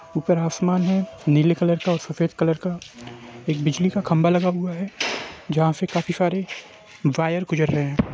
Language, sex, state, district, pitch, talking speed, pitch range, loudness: Hindi, male, Bihar, Gopalganj, 170 Hz, 185 wpm, 160-180 Hz, -22 LUFS